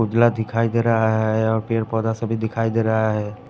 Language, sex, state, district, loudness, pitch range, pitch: Hindi, male, Punjab, Pathankot, -20 LUFS, 110-115 Hz, 115 Hz